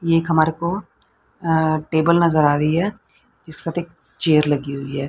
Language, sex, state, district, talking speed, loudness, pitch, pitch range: Hindi, female, Haryana, Rohtak, 155 wpm, -19 LUFS, 160 Hz, 150-170 Hz